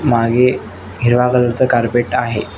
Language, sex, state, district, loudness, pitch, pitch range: Marathi, male, Maharashtra, Nagpur, -15 LUFS, 120 Hz, 115-125 Hz